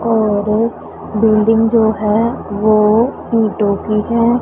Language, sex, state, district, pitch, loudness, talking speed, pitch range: Hindi, female, Punjab, Pathankot, 220 Hz, -14 LUFS, 110 wpm, 210-230 Hz